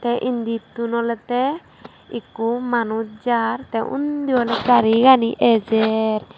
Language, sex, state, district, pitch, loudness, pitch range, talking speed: Chakma, female, Tripura, Dhalai, 235 Hz, -19 LUFS, 225-245 Hz, 105 wpm